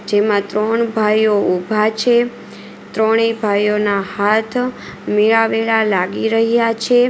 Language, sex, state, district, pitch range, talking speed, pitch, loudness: Gujarati, female, Gujarat, Valsad, 210-225 Hz, 100 wpm, 220 Hz, -16 LUFS